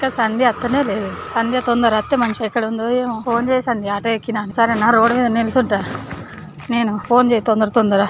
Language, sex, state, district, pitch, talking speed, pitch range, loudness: Telugu, female, Andhra Pradesh, Chittoor, 230 Hz, 185 wpm, 220-245 Hz, -17 LUFS